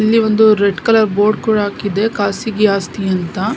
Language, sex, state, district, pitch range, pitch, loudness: Kannada, female, Karnataka, Mysore, 200-220 Hz, 210 Hz, -14 LUFS